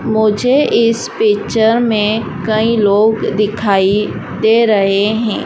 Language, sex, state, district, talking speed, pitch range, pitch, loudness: Hindi, female, Madhya Pradesh, Dhar, 110 wpm, 210-225 Hz, 220 Hz, -13 LUFS